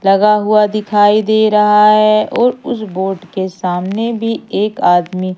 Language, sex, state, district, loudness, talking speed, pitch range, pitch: Hindi, female, Madhya Pradesh, Umaria, -13 LUFS, 155 wpm, 190-215 Hz, 210 Hz